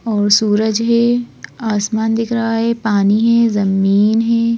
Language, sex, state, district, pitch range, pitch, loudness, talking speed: Hindi, female, Madhya Pradesh, Bhopal, 210-230 Hz, 225 Hz, -15 LUFS, 145 wpm